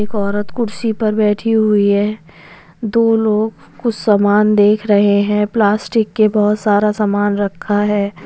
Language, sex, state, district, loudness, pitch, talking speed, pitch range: Hindi, female, West Bengal, Dakshin Dinajpur, -15 LUFS, 210 Hz, 150 wpm, 205-215 Hz